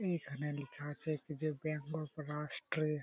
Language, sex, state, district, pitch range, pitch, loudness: Bengali, male, West Bengal, Malda, 145-155 Hz, 150 Hz, -41 LUFS